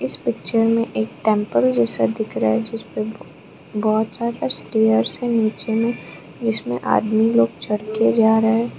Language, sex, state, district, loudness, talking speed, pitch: Hindi, female, Arunachal Pradesh, Lower Dibang Valley, -18 LUFS, 165 wpm, 220 Hz